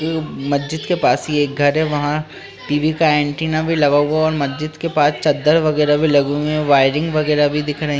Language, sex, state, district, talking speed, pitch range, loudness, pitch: Hindi, male, Bihar, Lakhisarai, 240 wpm, 145-155 Hz, -17 LUFS, 150 Hz